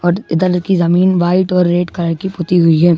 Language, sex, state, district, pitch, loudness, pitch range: Hindi, male, Madhya Pradesh, Bhopal, 175 Hz, -13 LUFS, 170-185 Hz